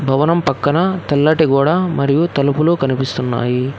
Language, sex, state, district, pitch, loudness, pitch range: Telugu, male, Telangana, Hyderabad, 145 Hz, -15 LUFS, 135-165 Hz